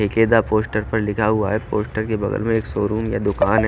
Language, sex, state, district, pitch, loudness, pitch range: Hindi, male, Haryana, Charkhi Dadri, 110 Hz, -20 LUFS, 105-110 Hz